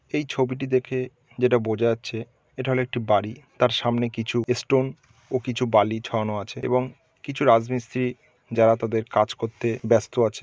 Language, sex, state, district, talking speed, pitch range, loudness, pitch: Bengali, male, West Bengal, North 24 Parganas, 155 wpm, 115-125 Hz, -24 LUFS, 120 Hz